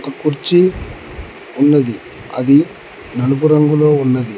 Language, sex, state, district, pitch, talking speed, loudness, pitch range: Telugu, male, Telangana, Mahabubabad, 145 Hz, 80 wpm, -14 LUFS, 130-150 Hz